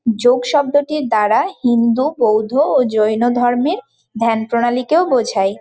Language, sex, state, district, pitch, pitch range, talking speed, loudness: Bengali, female, West Bengal, Paschim Medinipur, 245 Hz, 225-275 Hz, 115 wpm, -15 LUFS